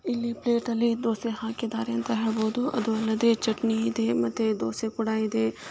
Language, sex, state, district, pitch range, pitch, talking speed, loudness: Kannada, female, Karnataka, Dakshina Kannada, 215-230 Hz, 220 Hz, 155 wpm, -27 LUFS